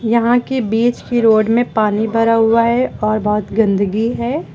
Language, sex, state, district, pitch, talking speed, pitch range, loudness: Hindi, female, Uttar Pradesh, Lucknow, 225 Hz, 185 wpm, 215-240 Hz, -15 LUFS